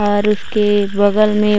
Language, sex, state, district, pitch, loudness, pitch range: Hindi, female, Chhattisgarh, Raigarh, 210 Hz, -15 LUFS, 205-210 Hz